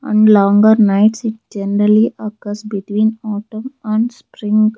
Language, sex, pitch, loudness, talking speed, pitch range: English, female, 215 Hz, -14 LUFS, 125 wpm, 205-220 Hz